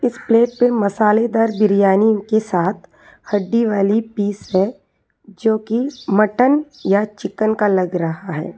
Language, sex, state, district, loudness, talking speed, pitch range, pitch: Hindi, female, Telangana, Hyderabad, -17 LUFS, 140 wpm, 195-230 Hz, 210 Hz